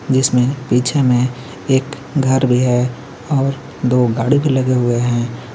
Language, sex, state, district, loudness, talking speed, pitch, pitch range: Hindi, male, Jharkhand, Garhwa, -16 LUFS, 150 wpm, 130 Hz, 125-135 Hz